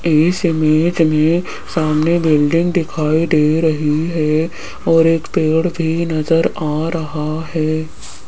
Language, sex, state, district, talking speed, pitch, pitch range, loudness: Hindi, female, Rajasthan, Jaipur, 125 wpm, 160 Hz, 155-165 Hz, -16 LUFS